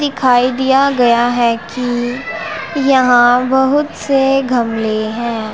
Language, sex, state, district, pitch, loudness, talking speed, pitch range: Hindi, female, Punjab, Pathankot, 250 Hz, -14 LUFS, 110 wpm, 240-270 Hz